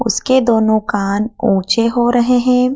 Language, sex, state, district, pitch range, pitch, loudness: Hindi, female, Madhya Pradesh, Dhar, 215-250 Hz, 235 Hz, -14 LUFS